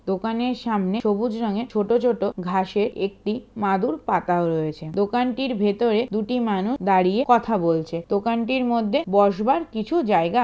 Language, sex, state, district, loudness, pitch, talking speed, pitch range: Bengali, male, West Bengal, Jalpaiguri, -22 LUFS, 215 Hz, 140 wpm, 195-240 Hz